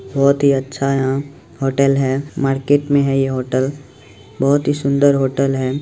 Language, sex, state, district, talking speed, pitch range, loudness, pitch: Maithili, male, Bihar, Supaul, 165 wpm, 135-140 Hz, -17 LUFS, 135 Hz